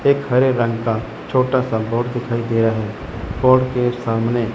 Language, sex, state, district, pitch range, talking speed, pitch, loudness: Hindi, male, Chandigarh, Chandigarh, 115-125 Hz, 185 wpm, 115 Hz, -19 LUFS